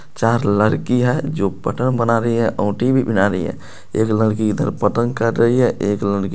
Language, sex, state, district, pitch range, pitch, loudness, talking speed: Hindi, male, Bihar, Madhepura, 105-120 Hz, 115 Hz, -18 LUFS, 200 wpm